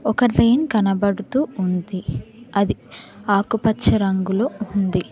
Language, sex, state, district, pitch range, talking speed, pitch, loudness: Telugu, female, Telangana, Mahabubabad, 190-225 Hz, 105 wpm, 200 Hz, -20 LUFS